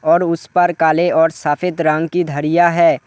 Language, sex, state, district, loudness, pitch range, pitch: Hindi, male, West Bengal, Alipurduar, -15 LUFS, 160-180 Hz, 170 Hz